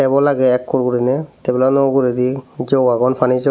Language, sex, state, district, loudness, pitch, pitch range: Chakma, male, Tripura, Dhalai, -16 LUFS, 130 Hz, 125-135 Hz